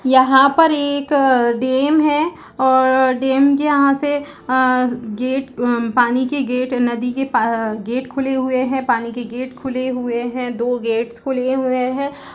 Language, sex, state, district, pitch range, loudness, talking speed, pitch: Hindi, female, Chhattisgarh, Raigarh, 245-270 Hz, -17 LUFS, 165 wpm, 260 Hz